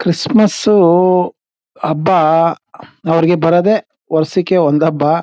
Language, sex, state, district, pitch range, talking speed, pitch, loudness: Kannada, male, Karnataka, Mysore, 160-185 Hz, 105 wpm, 170 Hz, -13 LUFS